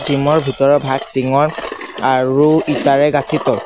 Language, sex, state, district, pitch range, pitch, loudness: Assamese, male, Assam, Sonitpur, 135-150 Hz, 140 Hz, -14 LUFS